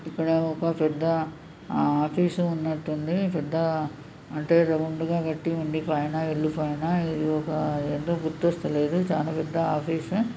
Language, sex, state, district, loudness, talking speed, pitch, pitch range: Telugu, male, Andhra Pradesh, Srikakulam, -26 LUFS, 125 wpm, 160 Hz, 155-165 Hz